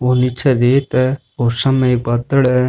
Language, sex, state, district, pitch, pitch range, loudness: Rajasthani, male, Rajasthan, Nagaur, 125 Hz, 120-135 Hz, -15 LUFS